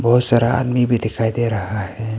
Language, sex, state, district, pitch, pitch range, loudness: Hindi, male, Arunachal Pradesh, Papum Pare, 115 Hz, 110-120 Hz, -18 LUFS